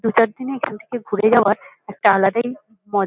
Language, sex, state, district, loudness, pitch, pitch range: Bengali, female, West Bengal, Kolkata, -19 LUFS, 220 Hz, 205-245 Hz